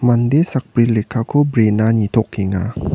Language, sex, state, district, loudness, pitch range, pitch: Garo, male, Meghalaya, West Garo Hills, -16 LUFS, 110-125 Hz, 115 Hz